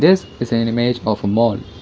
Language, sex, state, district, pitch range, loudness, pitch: English, female, Karnataka, Bangalore, 105-120 Hz, -18 LUFS, 115 Hz